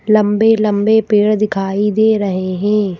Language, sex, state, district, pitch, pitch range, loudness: Hindi, female, Madhya Pradesh, Bhopal, 210 Hz, 200-215 Hz, -14 LUFS